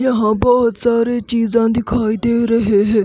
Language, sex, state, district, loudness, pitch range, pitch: Hindi, female, Haryana, Rohtak, -15 LUFS, 220-240 Hz, 230 Hz